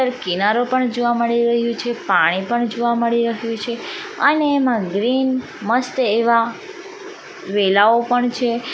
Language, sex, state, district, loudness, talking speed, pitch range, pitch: Gujarati, female, Gujarat, Valsad, -18 LUFS, 135 wpm, 230-255 Hz, 240 Hz